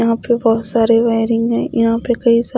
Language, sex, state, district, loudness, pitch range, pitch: Hindi, female, Odisha, Khordha, -15 LUFS, 230-235 Hz, 230 Hz